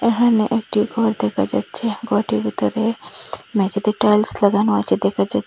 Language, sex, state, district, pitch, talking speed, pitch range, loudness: Bengali, female, Assam, Hailakandi, 210 Hz, 145 wpm, 150-225 Hz, -19 LUFS